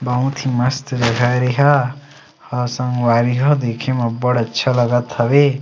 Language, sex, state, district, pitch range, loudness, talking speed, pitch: Chhattisgarhi, male, Chhattisgarh, Sarguja, 120-135 Hz, -17 LUFS, 160 wpm, 125 Hz